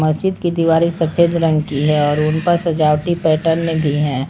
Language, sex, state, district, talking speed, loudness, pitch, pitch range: Hindi, female, Jharkhand, Palamu, 195 wpm, -16 LUFS, 160 Hz, 150-170 Hz